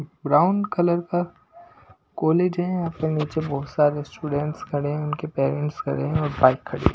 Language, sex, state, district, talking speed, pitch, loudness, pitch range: Hindi, male, Punjab, Pathankot, 180 wpm, 155 Hz, -23 LUFS, 145-175 Hz